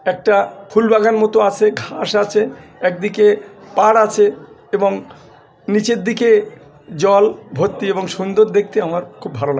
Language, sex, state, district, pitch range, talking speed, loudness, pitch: Bengali, male, West Bengal, North 24 Parganas, 190-215 Hz, 130 wpm, -16 LUFS, 205 Hz